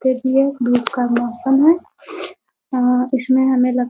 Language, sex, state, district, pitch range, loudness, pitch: Hindi, female, Bihar, Muzaffarpur, 245-265 Hz, -17 LUFS, 255 Hz